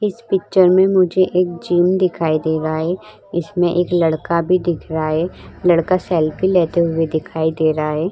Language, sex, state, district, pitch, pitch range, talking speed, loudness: Hindi, female, Bihar, Vaishali, 175 Hz, 160-185 Hz, 190 wpm, -17 LUFS